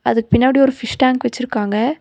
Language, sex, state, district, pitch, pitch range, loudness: Tamil, female, Tamil Nadu, Nilgiris, 250 Hz, 230-260 Hz, -16 LUFS